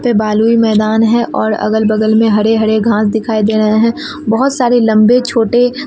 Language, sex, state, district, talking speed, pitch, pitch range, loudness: Hindi, female, Bihar, Katihar, 195 wpm, 225 Hz, 215-235 Hz, -11 LUFS